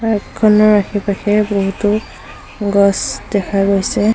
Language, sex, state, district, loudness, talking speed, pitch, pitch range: Assamese, female, Assam, Sonitpur, -15 LUFS, 100 wpm, 205 Hz, 200-210 Hz